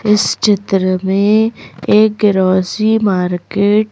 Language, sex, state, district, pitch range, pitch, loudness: Hindi, female, Madhya Pradesh, Bhopal, 185-215 Hz, 205 Hz, -13 LUFS